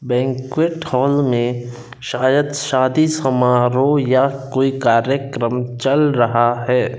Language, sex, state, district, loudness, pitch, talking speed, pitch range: Hindi, male, Rajasthan, Jaipur, -17 LUFS, 130 Hz, 105 wpm, 125-140 Hz